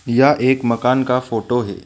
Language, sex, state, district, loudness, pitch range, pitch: Hindi, male, West Bengal, Alipurduar, -17 LUFS, 120-130 Hz, 125 Hz